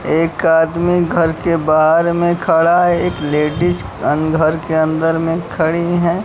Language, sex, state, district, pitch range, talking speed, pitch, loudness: Hindi, male, Bihar, West Champaran, 160-170 Hz, 155 wpm, 165 Hz, -15 LUFS